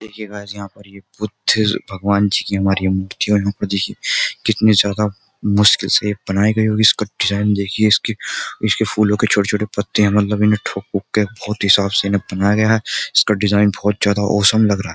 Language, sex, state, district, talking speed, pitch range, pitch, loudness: Hindi, male, Uttar Pradesh, Jyotiba Phule Nagar, 220 wpm, 100-105 Hz, 105 Hz, -16 LUFS